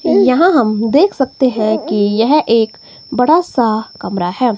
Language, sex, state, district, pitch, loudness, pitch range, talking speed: Hindi, female, Himachal Pradesh, Shimla, 235 Hz, -13 LUFS, 215-285 Hz, 155 wpm